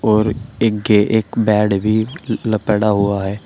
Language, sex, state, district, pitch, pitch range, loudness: Hindi, male, Uttar Pradesh, Shamli, 110 Hz, 105-110 Hz, -16 LUFS